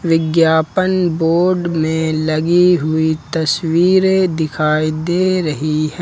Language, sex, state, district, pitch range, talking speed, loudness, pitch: Hindi, male, Jharkhand, Ranchi, 155-180 Hz, 100 wpm, -15 LUFS, 165 Hz